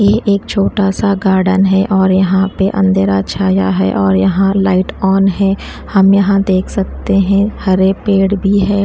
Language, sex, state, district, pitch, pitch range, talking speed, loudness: Hindi, female, Chhattisgarh, Raipur, 195 Hz, 190-200 Hz, 175 wpm, -12 LUFS